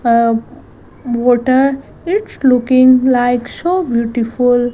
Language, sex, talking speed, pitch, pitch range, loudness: English, female, 90 wpm, 250 Hz, 240-260 Hz, -13 LUFS